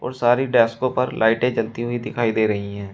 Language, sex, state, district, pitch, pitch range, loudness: Hindi, male, Uttar Pradesh, Shamli, 120 Hz, 110-125 Hz, -20 LUFS